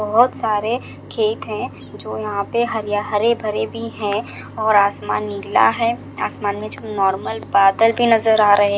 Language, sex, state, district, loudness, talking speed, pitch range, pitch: Hindi, male, Punjab, Fazilka, -19 LUFS, 170 wpm, 200-230 Hz, 210 Hz